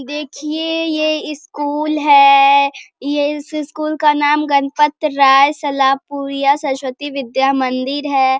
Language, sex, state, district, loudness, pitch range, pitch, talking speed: Hindi, female, Bihar, Bhagalpur, -15 LUFS, 275-305 Hz, 290 Hz, 105 wpm